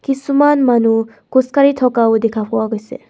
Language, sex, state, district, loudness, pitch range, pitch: Assamese, female, Assam, Kamrup Metropolitan, -14 LUFS, 225-270 Hz, 245 Hz